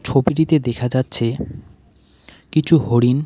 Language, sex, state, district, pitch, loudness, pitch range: Bengali, male, West Bengal, Alipurduar, 130 Hz, -18 LUFS, 120-155 Hz